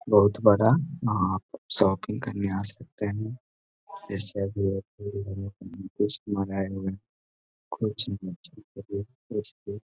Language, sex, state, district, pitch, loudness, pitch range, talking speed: Hindi, male, Bihar, Gaya, 100 Hz, -26 LUFS, 95-110 Hz, 120 wpm